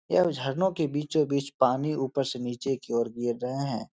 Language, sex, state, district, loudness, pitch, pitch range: Hindi, male, Uttar Pradesh, Etah, -28 LUFS, 135 Hz, 125-150 Hz